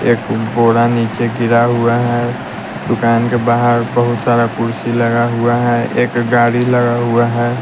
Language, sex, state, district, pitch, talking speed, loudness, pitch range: Hindi, male, Bihar, West Champaran, 120 Hz, 155 wpm, -14 LUFS, 115-120 Hz